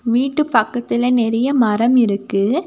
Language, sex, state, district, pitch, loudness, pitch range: Tamil, female, Tamil Nadu, Nilgiris, 240 Hz, -16 LUFS, 220-255 Hz